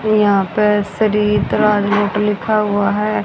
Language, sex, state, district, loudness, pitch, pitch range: Hindi, female, Haryana, Rohtak, -15 LUFS, 210 Hz, 205-210 Hz